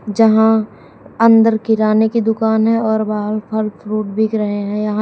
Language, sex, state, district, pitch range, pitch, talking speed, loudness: Hindi, female, Uttar Pradesh, Shamli, 215-220 Hz, 220 Hz, 165 wpm, -15 LUFS